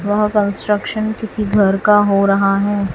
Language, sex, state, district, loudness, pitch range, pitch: Hindi, female, Chhattisgarh, Raipur, -15 LUFS, 200-210 Hz, 205 Hz